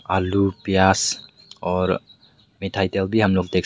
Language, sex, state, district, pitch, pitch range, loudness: Hindi, male, Meghalaya, West Garo Hills, 95 Hz, 95-100 Hz, -21 LUFS